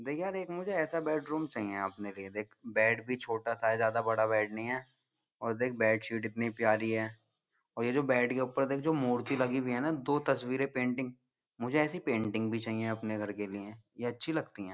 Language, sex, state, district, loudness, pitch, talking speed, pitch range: Hindi, male, Uttar Pradesh, Jyotiba Phule Nagar, -33 LUFS, 120 Hz, 205 wpm, 110-135 Hz